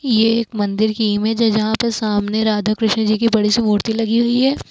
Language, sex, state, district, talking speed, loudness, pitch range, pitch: Hindi, female, Uttar Pradesh, Lucknow, 240 wpm, -17 LUFS, 215-230 Hz, 220 Hz